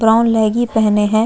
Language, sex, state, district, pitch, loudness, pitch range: Hindi, female, Chhattisgarh, Jashpur, 220 Hz, -14 LUFS, 215-225 Hz